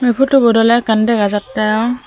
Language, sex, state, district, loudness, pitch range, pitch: Chakma, female, Tripura, Dhalai, -13 LUFS, 215-245 Hz, 230 Hz